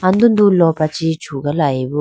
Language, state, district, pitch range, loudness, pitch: Idu Mishmi, Arunachal Pradesh, Lower Dibang Valley, 145-185 Hz, -15 LUFS, 160 Hz